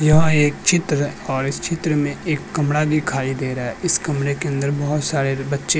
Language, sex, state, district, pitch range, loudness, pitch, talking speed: Hindi, male, Uttar Pradesh, Jyotiba Phule Nagar, 140-155 Hz, -20 LUFS, 145 Hz, 215 wpm